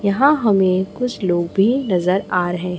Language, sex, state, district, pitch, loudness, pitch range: Hindi, female, Chhattisgarh, Raipur, 190 Hz, -18 LUFS, 180-210 Hz